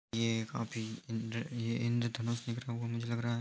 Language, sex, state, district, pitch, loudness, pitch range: Hindi, male, Uttar Pradesh, Hamirpur, 115 Hz, -37 LUFS, 115-120 Hz